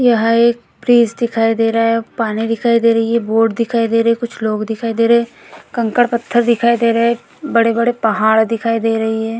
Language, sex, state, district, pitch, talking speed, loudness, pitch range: Hindi, female, Bihar, Vaishali, 230 Hz, 225 wpm, -15 LUFS, 225-235 Hz